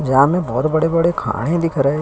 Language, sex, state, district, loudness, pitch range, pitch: Hindi, male, Uttar Pradesh, Hamirpur, -17 LUFS, 135-165 Hz, 155 Hz